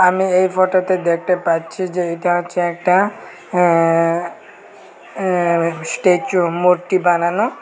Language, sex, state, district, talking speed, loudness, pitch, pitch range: Bengali, male, Tripura, Unakoti, 100 wpm, -17 LUFS, 180 Hz, 170-185 Hz